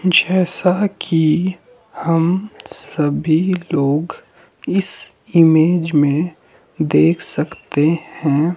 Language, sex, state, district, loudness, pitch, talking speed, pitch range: Hindi, male, Himachal Pradesh, Shimla, -17 LUFS, 165 Hz, 75 wpm, 155-185 Hz